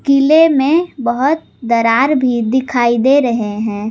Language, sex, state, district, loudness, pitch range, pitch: Hindi, female, Jharkhand, Garhwa, -13 LUFS, 235-285 Hz, 255 Hz